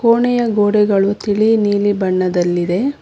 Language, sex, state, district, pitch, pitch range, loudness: Kannada, female, Karnataka, Bangalore, 205 Hz, 190-230 Hz, -15 LUFS